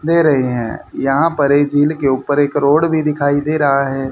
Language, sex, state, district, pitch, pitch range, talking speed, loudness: Hindi, male, Haryana, Jhajjar, 145 Hz, 135-150 Hz, 235 wpm, -15 LUFS